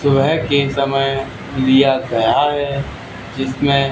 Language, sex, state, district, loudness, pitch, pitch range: Hindi, male, Haryana, Charkhi Dadri, -16 LUFS, 135 Hz, 130-140 Hz